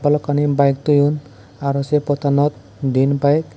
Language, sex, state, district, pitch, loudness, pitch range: Chakma, male, Tripura, West Tripura, 145 Hz, -18 LUFS, 140-145 Hz